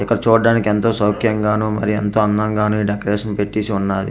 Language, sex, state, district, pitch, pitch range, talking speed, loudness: Telugu, male, Andhra Pradesh, Manyam, 105 Hz, 105-110 Hz, 160 wpm, -17 LUFS